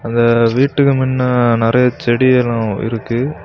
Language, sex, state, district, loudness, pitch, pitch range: Tamil, male, Tamil Nadu, Kanyakumari, -14 LUFS, 120 Hz, 115-130 Hz